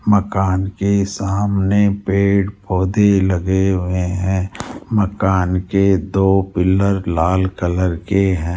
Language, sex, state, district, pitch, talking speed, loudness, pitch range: Hindi, male, Rajasthan, Jaipur, 95 Hz, 110 wpm, -17 LUFS, 95-100 Hz